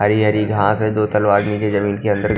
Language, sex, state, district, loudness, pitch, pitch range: Hindi, male, Punjab, Kapurthala, -17 LUFS, 105 Hz, 100-105 Hz